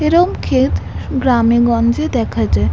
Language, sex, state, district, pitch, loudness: Bengali, female, West Bengal, Jhargram, 235 Hz, -15 LUFS